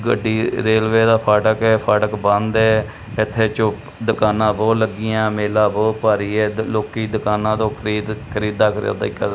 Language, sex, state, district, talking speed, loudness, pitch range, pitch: Punjabi, male, Punjab, Kapurthala, 160 wpm, -18 LUFS, 105-110 Hz, 110 Hz